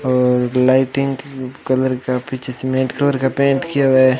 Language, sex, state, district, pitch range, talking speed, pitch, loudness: Hindi, male, Rajasthan, Bikaner, 130-135 Hz, 170 wpm, 130 Hz, -17 LUFS